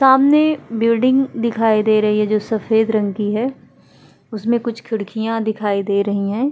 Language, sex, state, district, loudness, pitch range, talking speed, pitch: Hindi, female, Bihar, Vaishali, -17 LUFS, 210-235 Hz, 165 wpm, 220 Hz